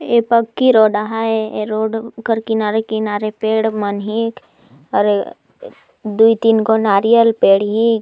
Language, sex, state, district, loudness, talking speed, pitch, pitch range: Sadri, female, Chhattisgarh, Jashpur, -15 LUFS, 150 wpm, 220 Hz, 215-230 Hz